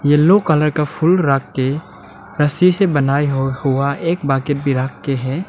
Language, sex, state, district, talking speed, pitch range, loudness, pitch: Hindi, male, Arunachal Pradesh, Lower Dibang Valley, 175 wpm, 135-160 Hz, -16 LUFS, 145 Hz